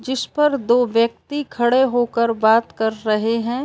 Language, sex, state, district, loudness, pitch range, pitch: Hindi, female, Uttar Pradesh, Varanasi, -18 LUFS, 230-260 Hz, 240 Hz